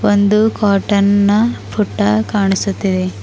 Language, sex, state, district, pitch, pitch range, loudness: Kannada, female, Karnataka, Bidar, 200 Hz, 195-210 Hz, -14 LUFS